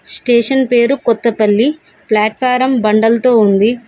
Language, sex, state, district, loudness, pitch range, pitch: Telugu, female, Telangana, Komaram Bheem, -12 LUFS, 215-255 Hz, 235 Hz